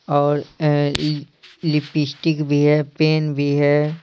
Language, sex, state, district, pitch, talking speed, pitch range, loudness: Hindi, male, Bihar, Patna, 150 Hz, 105 wpm, 145-155 Hz, -19 LUFS